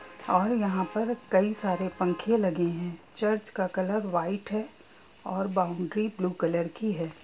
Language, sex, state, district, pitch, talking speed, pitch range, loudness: Hindi, female, Bihar, Gopalganj, 185 Hz, 165 wpm, 175-215 Hz, -29 LUFS